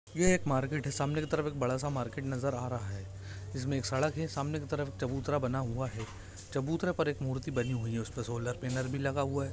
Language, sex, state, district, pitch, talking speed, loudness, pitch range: Hindi, male, Jharkhand, Jamtara, 135 Hz, 260 wpm, -34 LUFS, 125-145 Hz